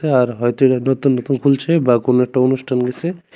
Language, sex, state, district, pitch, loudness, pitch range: Bengali, male, Tripura, West Tripura, 130 Hz, -16 LUFS, 125-140 Hz